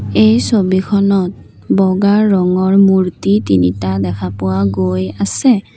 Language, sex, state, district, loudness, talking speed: Assamese, female, Assam, Kamrup Metropolitan, -13 LUFS, 105 wpm